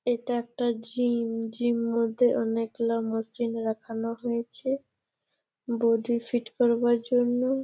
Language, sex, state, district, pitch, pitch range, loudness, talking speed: Bengali, female, West Bengal, Malda, 235 Hz, 230-245 Hz, -27 LUFS, 120 wpm